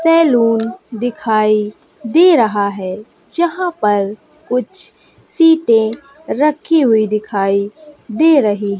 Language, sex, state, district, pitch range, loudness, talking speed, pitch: Hindi, female, Bihar, West Champaran, 210-310 Hz, -14 LUFS, 95 wpm, 235 Hz